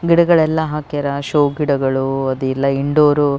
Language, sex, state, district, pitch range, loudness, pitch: Kannada, female, Karnataka, Raichur, 135-150 Hz, -16 LUFS, 145 Hz